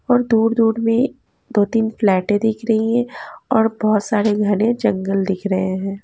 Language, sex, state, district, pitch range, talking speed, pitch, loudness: Hindi, female, Haryana, Jhajjar, 200-225 Hz, 180 wpm, 220 Hz, -18 LUFS